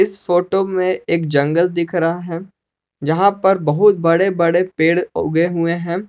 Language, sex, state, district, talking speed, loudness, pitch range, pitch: Hindi, male, Jharkhand, Palamu, 165 wpm, -16 LUFS, 165-190 Hz, 175 Hz